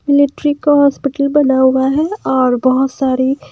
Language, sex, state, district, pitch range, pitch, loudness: Hindi, female, Himachal Pradesh, Shimla, 260-285 Hz, 275 Hz, -13 LUFS